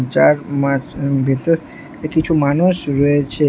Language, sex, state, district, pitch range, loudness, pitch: Bengali, female, West Bengal, Alipurduar, 140-155 Hz, -16 LUFS, 145 Hz